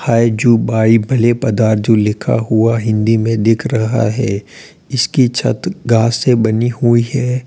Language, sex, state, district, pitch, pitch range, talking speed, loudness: Hindi, male, Uttar Pradesh, Lalitpur, 115 Hz, 110-120 Hz, 160 wpm, -14 LUFS